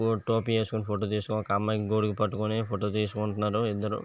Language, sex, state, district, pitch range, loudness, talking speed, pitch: Telugu, male, Andhra Pradesh, Visakhapatnam, 105-110 Hz, -29 LUFS, 150 wpm, 105 Hz